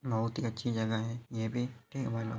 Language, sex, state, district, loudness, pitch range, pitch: Hindi, male, Uttar Pradesh, Hamirpur, -35 LUFS, 115-120 Hz, 115 Hz